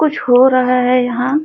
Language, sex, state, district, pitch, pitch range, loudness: Hindi, female, Uttar Pradesh, Jalaun, 255 Hz, 250-260 Hz, -13 LUFS